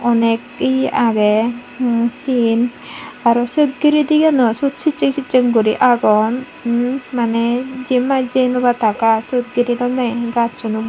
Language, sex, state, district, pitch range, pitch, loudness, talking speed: Chakma, female, Tripura, Dhalai, 230-255 Hz, 240 Hz, -16 LUFS, 130 wpm